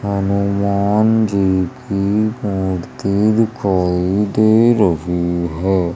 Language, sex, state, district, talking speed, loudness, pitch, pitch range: Hindi, male, Madhya Pradesh, Umaria, 80 wpm, -16 LUFS, 100 Hz, 90-105 Hz